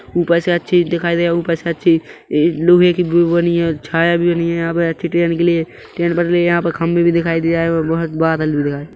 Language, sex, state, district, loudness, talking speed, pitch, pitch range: Hindi, male, Chhattisgarh, Rajnandgaon, -15 LUFS, 280 wpm, 170 Hz, 165-170 Hz